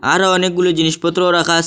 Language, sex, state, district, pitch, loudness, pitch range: Bengali, male, Assam, Hailakandi, 175 Hz, -14 LUFS, 170-180 Hz